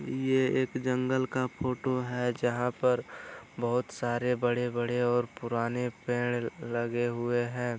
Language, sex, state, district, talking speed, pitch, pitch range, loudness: Hindi, male, Bihar, Araria, 130 wpm, 120 Hz, 120-125 Hz, -30 LUFS